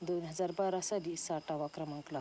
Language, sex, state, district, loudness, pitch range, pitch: Marathi, female, Maharashtra, Pune, -38 LUFS, 155-185 Hz, 170 Hz